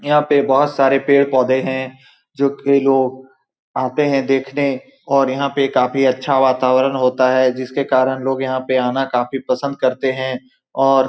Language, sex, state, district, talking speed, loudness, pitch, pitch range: Hindi, male, Bihar, Saran, 180 wpm, -17 LUFS, 135 Hz, 130-140 Hz